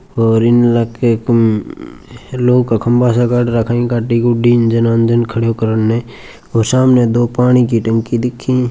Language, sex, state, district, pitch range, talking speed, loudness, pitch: Marwari, male, Rajasthan, Churu, 115-120 Hz, 150 wpm, -13 LUFS, 120 Hz